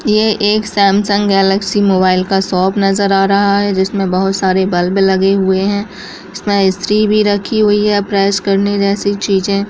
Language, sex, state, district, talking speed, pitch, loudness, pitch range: Hindi, female, Bihar, Kishanganj, 175 wpm, 200 Hz, -13 LUFS, 195-205 Hz